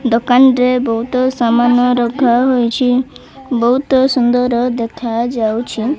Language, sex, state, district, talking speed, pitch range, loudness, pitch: Odia, female, Odisha, Malkangiri, 80 wpm, 235-255 Hz, -14 LUFS, 245 Hz